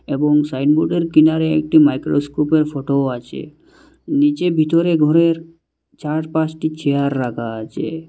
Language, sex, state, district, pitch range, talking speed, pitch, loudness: Bengali, male, Assam, Hailakandi, 145-165 Hz, 110 wpm, 155 Hz, -17 LUFS